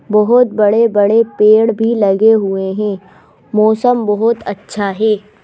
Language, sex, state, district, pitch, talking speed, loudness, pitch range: Hindi, female, Madhya Pradesh, Bhopal, 215 Hz, 130 wpm, -13 LUFS, 205-225 Hz